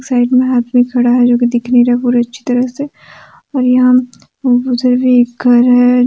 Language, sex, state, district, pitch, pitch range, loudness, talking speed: Hindi, female, Jharkhand, Deoghar, 245 Hz, 245-255 Hz, -11 LUFS, 225 wpm